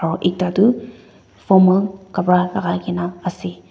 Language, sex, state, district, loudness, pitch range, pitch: Nagamese, female, Nagaland, Dimapur, -18 LUFS, 175-190 Hz, 180 Hz